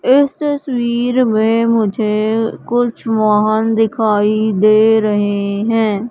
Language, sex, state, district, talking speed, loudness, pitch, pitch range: Hindi, female, Madhya Pradesh, Katni, 100 wpm, -14 LUFS, 220 Hz, 215-235 Hz